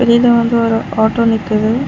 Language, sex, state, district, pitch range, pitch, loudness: Tamil, female, Tamil Nadu, Chennai, 220-235 Hz, 230 Hz, -13 LUFS